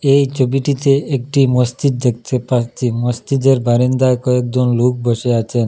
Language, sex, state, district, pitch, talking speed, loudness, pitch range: Bengali, male, Assam, Hailakandi, 125 Hz, 125 wpm, -15 LUFS, 120-135 Hz